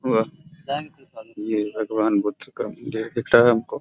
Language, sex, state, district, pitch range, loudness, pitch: Hindi, male, Bihar, Araria, 110-135 Hz, -23 LUFS, 110 Hz